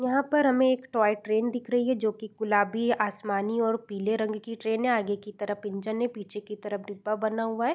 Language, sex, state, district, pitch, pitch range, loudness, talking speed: Hindi, female, Uttar Pradesh, Deoria, 220 Hz, 210-240 Hz, -28 LUFS, 240 wpm